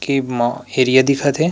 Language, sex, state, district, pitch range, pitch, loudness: Chhattisgarhi, male, Chhattisgarh, Rajnandgaon, 130-140 Hz, 135 Hz, -16 LUFS